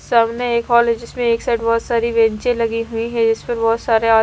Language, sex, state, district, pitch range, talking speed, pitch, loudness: Hindi, female, Haryana, Rohtak, 225-235 Hz, 240 wpm, 230 Hz, -17 LUFS